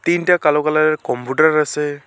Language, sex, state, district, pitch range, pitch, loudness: Bengali, male, West Bengal, Alipurduar, 150-155 Hz, 155 Hz, -16 LUFS